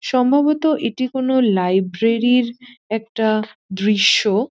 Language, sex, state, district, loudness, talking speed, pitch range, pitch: Bengali, female, West Bengal, North 24 Parganas, -18 LUFS, 95 wpm, 210-255 Hz, 230 Hz